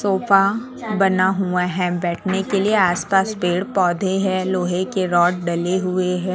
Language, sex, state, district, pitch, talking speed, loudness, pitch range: Hindi, female, Chhattisgarh, Raipur, 185 Hz, 170 wpm, -19 LUFS, 180-195 Hz